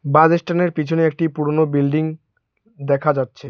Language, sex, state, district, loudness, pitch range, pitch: Bengali, male, West Bengal, Alipurduar, -18 LUFS, 145-165 Hz, 155 Hz